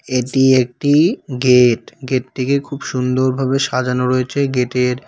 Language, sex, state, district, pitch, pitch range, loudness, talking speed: Bengali, male, West Bengal, Cooch Behar, 130 Hz, 125-135 Hz, -16 LUFS, 120 wpm